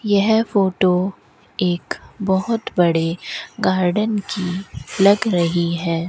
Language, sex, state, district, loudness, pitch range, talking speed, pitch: Hindi, female, Rajasthan, Bikaner, -19 LUFS, 175-205 Hz, 100 wpm, 190 Hz